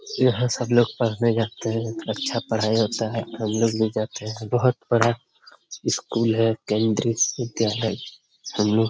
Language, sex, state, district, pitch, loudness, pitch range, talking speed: Hindi, male, Bihar, Jamui, 115 Hz, -23 LUFS, 110-120 Hz, 160 wpm